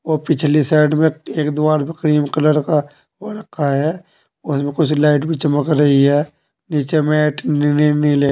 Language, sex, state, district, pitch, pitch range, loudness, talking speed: Hindi, male, Uttar Pradesh, Saharanpur, 150 Hz, 145-155 Hz, -16 LUFS, 180 wpm